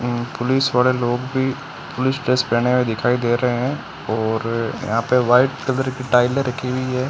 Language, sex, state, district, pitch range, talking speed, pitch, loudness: Hindi, male, Rajasthan, Bikaner, 120-130 Hz, 185 wpm, 125 Hz, -19 LUFS